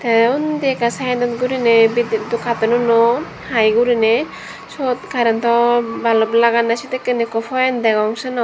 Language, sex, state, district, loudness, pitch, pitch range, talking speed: Chakma, female, Tripura, Dhalai, -16 LUFS, 235 Hz, 230-250 Hz, 120 wpm